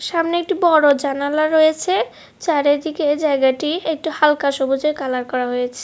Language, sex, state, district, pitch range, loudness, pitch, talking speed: Bengali, female, Tripura, West Tripura, 275-320 Hz, -18 LUFS, 300 Hz, 135 wpm